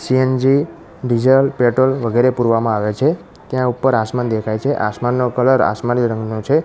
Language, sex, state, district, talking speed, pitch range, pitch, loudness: Gujarati, male, Gujarat, Gandhinagar, 155 wpm, 115-130 Hz, 125 Hz, -16 LUFS